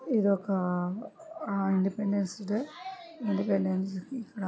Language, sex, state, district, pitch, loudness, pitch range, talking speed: Telugu, female, Andhra Pradesh, Srikakulam, 200 Hz, -31 LUFS, 190-245 Hz, 105 wpm